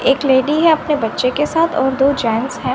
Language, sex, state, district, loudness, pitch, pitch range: Hindi, female, Haryana, Rohtak, -15 LUFS, 270 Hz, 260-300 Hz